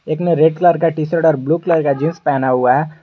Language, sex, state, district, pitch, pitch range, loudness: Hindi, male, Jharkhand, Garhwa, 160 Hz, 155-165 Hz, -15 LUFS